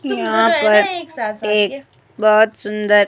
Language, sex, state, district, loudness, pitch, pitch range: Hindi, female, Himachal Pradesh, Shimla, -16 LUFS, 215 Hz, 210-225 Hz